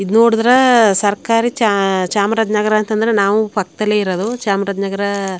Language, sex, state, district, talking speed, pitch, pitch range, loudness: Kannada, female, Karnataka, Chamarajanagar, 120 wpm, 210 Hz, 200-225 Hz, -15 LUFS